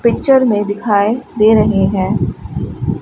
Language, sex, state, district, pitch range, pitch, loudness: Hindi, female, Rajasthan, Bikaner, 205-235 Hz, 215 Hz, -14 LUFS